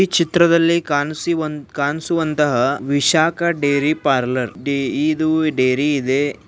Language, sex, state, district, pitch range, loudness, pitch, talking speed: Kannada, male, Karnataka, Belgaum, 140-165 Hz, -18 LUFS, 150 Hz, 100 wpm